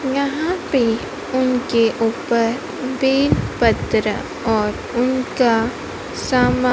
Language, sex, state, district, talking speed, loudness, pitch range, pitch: Hindi, female, Madhya Pradesh, Dhar, 70 wpm, -19 LUFS, 230-270 Hz, 250 Hz